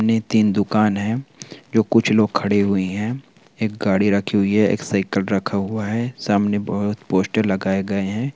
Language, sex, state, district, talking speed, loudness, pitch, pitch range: Hindi, male, Bihar, Begusarai, 195 wpm, -20 LUFS, 105 Hz, 100-110 Hz